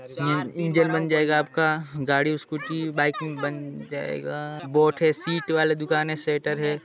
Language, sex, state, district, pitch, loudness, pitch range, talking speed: Hindi, male, Chhattisgarh, Sarguja, 150 Hz, -24 LUFS, 145-160 Hz, 160 wpm